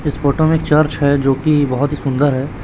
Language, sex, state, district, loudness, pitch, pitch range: Hindi, male, Chhattisgarh, Raipur, -15 LUFS, 145 Hz, 135-150 Hz